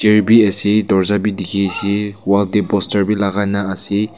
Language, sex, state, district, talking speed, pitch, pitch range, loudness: Nagamese, male, Nagaland, Kohima, 170 wpm, 100 Hz, 100-105 Hz, -16 LUFS